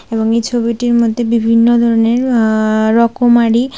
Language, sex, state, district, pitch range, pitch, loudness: Bengali, female, Tripura, West Tripura, 225-240 Hz, 235 Hz, -12 LUFS